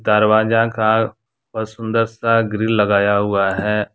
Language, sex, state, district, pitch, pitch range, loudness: Hindi, male, Jharkhand, Deoghar, 110 Hz, 105-115 Hz, -17 LUFS